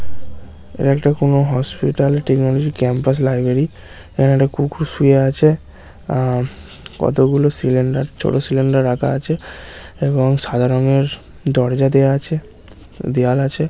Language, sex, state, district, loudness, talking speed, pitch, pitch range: Bengali, male, West Bengal, North 24 Parganas, -16 LUFS, 100 wpm, 135 Hz, 125-140 Hz